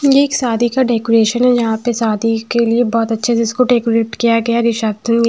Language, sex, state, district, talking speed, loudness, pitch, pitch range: Hindi, female, Himachal Pradesh, Shimla, 240 wpm, -14 LUFS, 230 Hz, 225-240 Hz